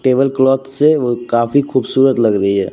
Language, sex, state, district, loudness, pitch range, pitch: Hindi, male, Uttar Pradesh, Jyotiba Phule Nagar, -14 LUFS, 115-135 Hz, 130 Hz